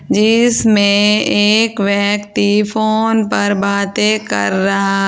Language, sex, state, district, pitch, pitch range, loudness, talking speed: Hindi, female, Uttar Pradesh, Saharanpur, 205 Hz, 200-220 Hz, -13 LUFS, 95 wpm